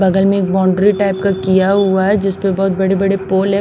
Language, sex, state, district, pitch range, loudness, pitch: Hindi, female, Punjab, Pathankot, 190-195 Hz, -14 LUFS, 195 Hz